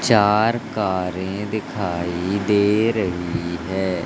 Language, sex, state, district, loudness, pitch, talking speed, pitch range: Hindi, male, Madhya Pradesh, Umaria, -21 LUFS, 100 Hz, 90 wpm, 90-105 Hz